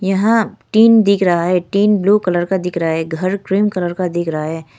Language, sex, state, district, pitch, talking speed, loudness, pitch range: Hindi, female, Arunachal Pradesh, Lower Dibang Valley, 185 Hz, 240 wpm, -15 LUFS, 170-200 Hz